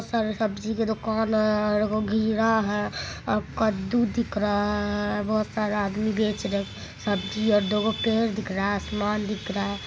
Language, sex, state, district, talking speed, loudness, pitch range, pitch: Maithili, male, Bihar, Supaul, 190 wpm, -25 LUFS, 205-220 Hz, 210 Hz